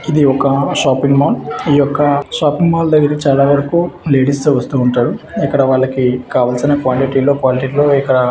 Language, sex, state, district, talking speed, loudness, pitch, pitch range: Telugu, male, Andhra Pradesh, Visakhapatnam, 165 wpm, -13 LUFS, 140 Hz, 130-145 Hz